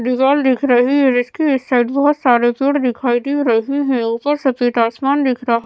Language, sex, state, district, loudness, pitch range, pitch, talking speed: Hindi, female, Maharashtra, Mumbai Suburban, -15 LUFS, 245-280 Hz, 255 Hz, 210 wpm